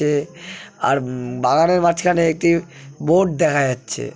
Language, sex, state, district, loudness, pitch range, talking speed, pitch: Bengali, male, West Bengal, Jalpaiguri, -18 LUFS, 140-170 Hz, 115 wpm, 160 Hz